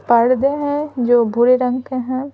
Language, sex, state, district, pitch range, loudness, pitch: Hindi, female, Bihar, Patna, 240-275 Hz, -16 LUFS, 255 Hz